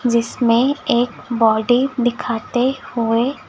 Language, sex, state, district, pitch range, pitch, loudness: Hindi, male, Chhattisgarh, Raipur, 230-255 Hz, 240 Hz, -18 LUFS